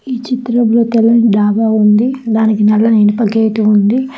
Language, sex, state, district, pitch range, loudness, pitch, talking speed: Telugu, female, Telangana, Hyderabad, 215-235 Hz, -11 LUFS, 225 Hz, 145 wpm